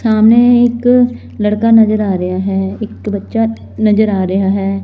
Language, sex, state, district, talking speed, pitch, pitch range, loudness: Punjabi, female, Punjab, Fazilka, 160 wpm, 215 Hz, 195-225 Hz, -12 LUFS